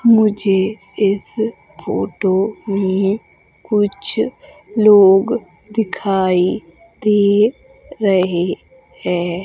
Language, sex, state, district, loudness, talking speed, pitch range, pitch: Hindi, female, Madhya Pradesh, Umaria, -16 LUFS, 65 wpm, 190-220 Hz, 205 Hz